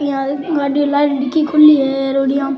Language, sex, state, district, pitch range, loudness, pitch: Rajasthani, male, Rajasthan, Churu, 275-290 Hz, -14 LUFS, 280 Hz